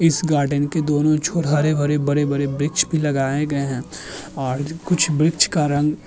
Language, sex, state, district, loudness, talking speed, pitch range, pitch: Hindi, male, Uttar Pradesh, Jyotiba Phule Nagar, -20 LUFS, 180 wpm, 145-155 Hz, 150 Hz